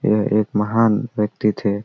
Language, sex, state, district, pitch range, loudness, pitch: Hindi, male, Bihar, Gaya, 105-110 Hz, -19 LUFS, 105 Hz